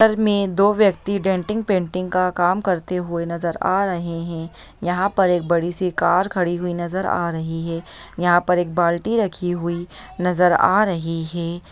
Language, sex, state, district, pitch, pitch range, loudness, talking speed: Hindi, female, Bihar, Jahanabad, 180 Hz, 170-190 Hz, -20 LUFS, 180 wpm